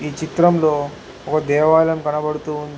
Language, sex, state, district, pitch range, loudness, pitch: Telugu, male, Telangana, Hyderabad, 150-160 Hz, -18 LUFS, 150 Hz